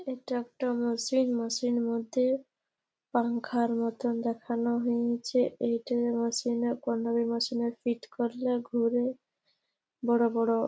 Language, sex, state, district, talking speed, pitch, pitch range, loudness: Bengali, female, West Bengal, Malda, 110 wpm, 235 Hz, 235-245 Hz, -30 LUFS